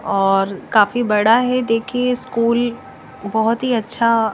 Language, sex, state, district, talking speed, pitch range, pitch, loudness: Hindi, female, Punjab, Kapurthala, 125 wpm, 215-240 Hz, 230 Hz, -17 LUFS